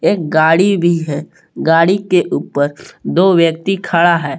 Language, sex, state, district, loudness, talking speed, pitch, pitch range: Hindi, male, Jharkhand, Palamu, -14 LUFS, 150 wpm, 170 Hz, 160-185 Hz